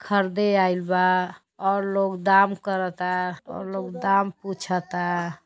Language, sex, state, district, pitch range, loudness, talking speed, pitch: Bhojpuri, female, Uttar Pradesh, Gorakhpur, 180-195 Hz, -24 LUFS, 120 wpm, 190 Hz